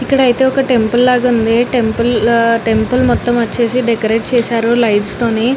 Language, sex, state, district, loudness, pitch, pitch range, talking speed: Telugu, female, Telangana, Nalgonda, -13 LUFS, 235 Hz, 230-245 Hz, 150 wpm